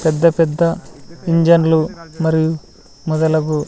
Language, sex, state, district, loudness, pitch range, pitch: Telugu, male, Andhra Pradesh, Sri Satya Sai, -16 LUFS, 155-170 Hz, 160 Hz